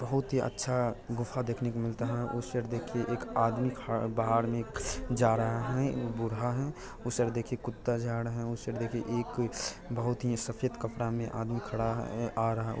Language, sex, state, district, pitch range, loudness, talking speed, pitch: Hindi, male, Bihar, Araria, 115-120 Hz, -33 LUFS, 195 wpm, 120 Hz